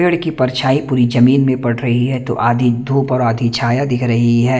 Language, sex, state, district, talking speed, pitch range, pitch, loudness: Hindi, male, Chandigarh, Chandigarh, 235 wpm, 120-130 Hz, 125 Hz, -15 LUFS